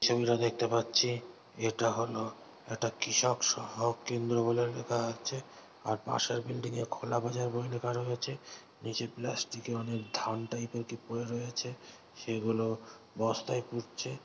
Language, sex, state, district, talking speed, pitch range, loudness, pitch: Bengali, male, West Bengal, North 24 Parganas, 145 wpm, 115-120 Hz, -34 LUFS, 120 Hz